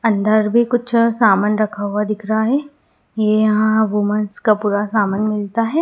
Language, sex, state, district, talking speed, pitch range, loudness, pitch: Hindi, female, Madhya Pradesh, Dhar, 165 wpm, 210-230 Hz, -17 LUFS, 215 Hz